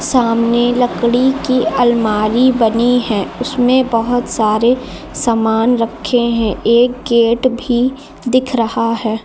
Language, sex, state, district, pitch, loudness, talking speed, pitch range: Hindi, female, Uttar Pradesh, Lucknow, 240 Hz, -14 LUFS, 115 wpm, 230-250 Hz